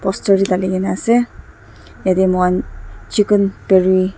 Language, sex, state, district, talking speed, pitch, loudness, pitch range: Nagamese, female, Nagaland, Dimapur, 145 wpm, 190 Hz, -16 LUFS, 185-200 Hz